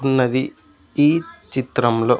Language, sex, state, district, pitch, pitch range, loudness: Telugu, male, Andhra Pradesh, Sri Satya Sai, 130 Hz, 125-145 Hz, -20 LUFS